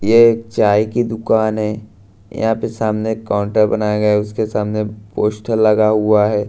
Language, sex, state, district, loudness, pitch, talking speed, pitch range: Hindi, male, Bihar, Katihar, -16 LUFS, 110 Hz, 175 wpm, 105-110 Hz